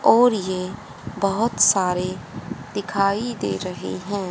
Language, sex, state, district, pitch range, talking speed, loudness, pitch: Hindi, female, Haryana, Rohtak, 185-205 Hz, 110 wpm, -22 LUFS, 195 Hz